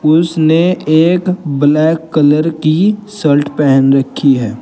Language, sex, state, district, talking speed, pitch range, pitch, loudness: Hindi, male, Uttar Pradesh, Saharanpur, 115 wpm, 145-165 Hz, 155 Hz, -12 LUFS